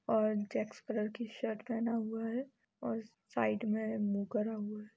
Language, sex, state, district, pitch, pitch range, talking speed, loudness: Hindi, female, Bihar, East Champaran, 220 Hz, 210-230 Hz, 180 wpm, -37 LUFS